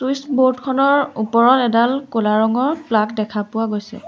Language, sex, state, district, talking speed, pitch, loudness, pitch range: Assamese, female, Assam, Sonitpur, 145 wpm, 235 Hz, -17 LUFS, 220-265 Hz